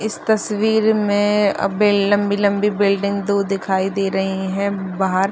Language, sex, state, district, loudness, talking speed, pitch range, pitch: Hindi, female, Bihar, Saharsa, -18 LUFS, 170 wpm, 195-210 Hz, 200 Hz